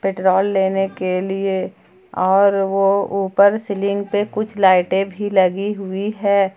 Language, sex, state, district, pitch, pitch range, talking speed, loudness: Hindi, female, Jharkhand, Palamu, 195 Hz, 190-200 Hz, 135 wpm, -18 LUFS